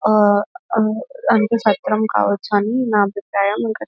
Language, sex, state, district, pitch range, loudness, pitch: Telugu, female, Telangana, Nalgonda, 200-230 Hz, -18 LUFS, 215 Hz